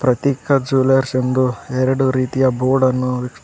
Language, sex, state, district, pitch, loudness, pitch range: Kannada, male, Karnataka, Koppal, 130 Hz, -17 LUFS, 125-135 Hz